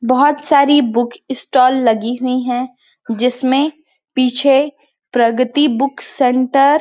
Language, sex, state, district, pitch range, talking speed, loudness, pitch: Hindi, female, Chhattisgarh, Balrampur, 250-285 Hz, 115 wpm, -15 LUFS, 260 Hz